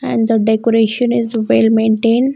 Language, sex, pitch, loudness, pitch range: English, female, 225 Hz, -14 LUFS, 220-235 Hz